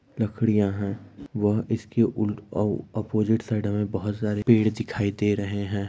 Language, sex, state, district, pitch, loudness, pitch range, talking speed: Hindi, male, Maharashtra, Dhule, 105 Hz, -25 LUFS, 100-110 Hz, 155 wpm